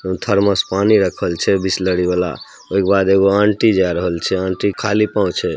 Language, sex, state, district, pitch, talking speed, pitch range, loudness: Maithili, male, Bihar, Samastipur, 95 Hz, 195 wpm, 95-100 Hz, -16 LUFS